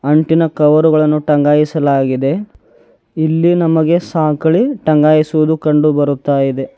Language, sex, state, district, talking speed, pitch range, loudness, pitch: Kannada, male, Karnataka, Bidar, 90 wpm, 145-160 Hz, -13 LUFS, 155 Hz